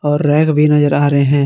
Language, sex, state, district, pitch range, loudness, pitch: Hindi, male, Jharkhand, Garhwa, 145-150 Hz, -12 LUFS, 145 Hz